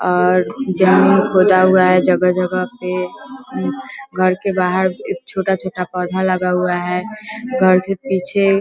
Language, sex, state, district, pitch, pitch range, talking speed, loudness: Hindi, female, Bihar, Vaishali, 185 Hz, 180-195 Hz, 140 wpm, -16 LUFS